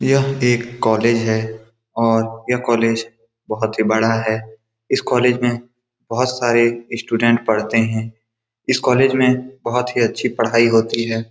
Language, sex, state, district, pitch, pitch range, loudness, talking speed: Hindi, male, Bihar, Saran, 115 Hz, 115-120 Hz, -18 LUFS, 150 wpm